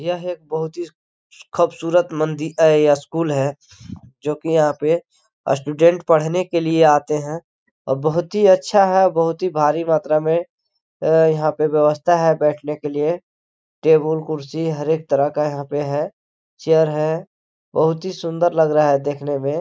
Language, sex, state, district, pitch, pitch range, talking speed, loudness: Hindi, male, Chhattisgarh, Korba, 155 Hz, 150-165 Hz, 160 wpm, -18 LUFS